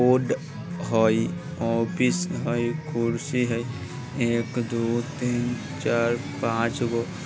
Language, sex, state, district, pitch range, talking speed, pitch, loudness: Bajjika, male, Bihar, Vaishali, 115-125 Hz, 105 wpm, 120 Hz, -26 LUFS